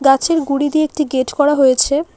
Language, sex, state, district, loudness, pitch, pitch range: Bengali, female, West Bengal, Alipurduar, -15 LUFS, 290 Hz, 270-305 Hz